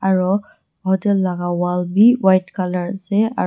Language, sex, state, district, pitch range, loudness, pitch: Nagamese, female, Nagaland, Dimapur, 180-200 Hz, -18 LUFS, 190 Hz